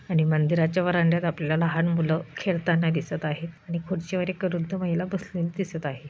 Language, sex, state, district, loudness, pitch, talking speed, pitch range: Marathi, female, Maharashtra, Solapur, -26 LUFS, 170 Hz, 155 wpm, 160-180 Hz